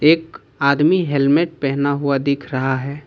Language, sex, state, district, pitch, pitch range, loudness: Hindi, male, Jharkhand, Ranchi, 140 Hz, 140-150 Hz, -18 LUFS